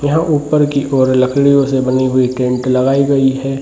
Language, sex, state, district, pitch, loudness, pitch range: Hindi, male, Bihar, Jamui, 135 Hz, -13 LUFS, 130-140 Hz